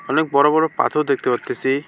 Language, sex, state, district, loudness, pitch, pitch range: Bengali, male, West Bengal, Alipurduar, -18 LUFS, 145 Hz, 135-155 Hz